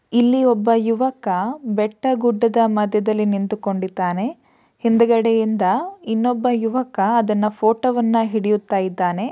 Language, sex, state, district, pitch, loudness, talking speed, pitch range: Kannada, female, Karnataka, Shimoga, 225 Hz, -19 LUFS, 95 wpm, 210-240 Hz